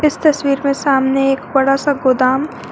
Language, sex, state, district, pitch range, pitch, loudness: Hindi, female, Jharkhand, Garhwa, 270-290 Hz, 275 Hz, -15 LUFS